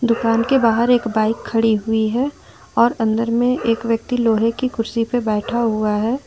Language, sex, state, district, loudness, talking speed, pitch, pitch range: Hindi, female, Jharkhand, Ranchi, -18 LUFS, 190 wpm, 230 Hz, 225-240 Hz